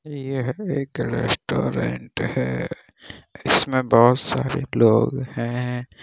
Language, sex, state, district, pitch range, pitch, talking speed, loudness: Hindi, male, Bihar, Kishanganj, 110-135 Hz, 125 Hz, 90 wpm, -21 LUFS